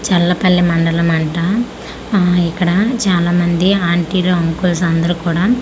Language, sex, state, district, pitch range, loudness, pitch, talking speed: Telugu, female, Andhra Pradesh, Manyam, 170-185 Hz, -14 LUFS, 175 Hz, 130 wpm